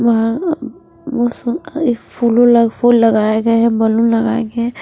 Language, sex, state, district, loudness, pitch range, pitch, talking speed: Hindi, female, Bihar, West Champaran, -14 LUFS, 230-245 Hz, 235 Hz, 135 wpm